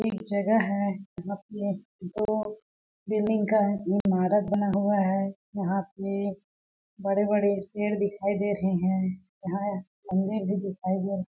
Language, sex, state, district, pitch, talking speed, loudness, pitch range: Hindi, female, Chhattisgarh, Balrampur, 200 Hz, 145 wpm, -28 LUFS, 195-205 Hz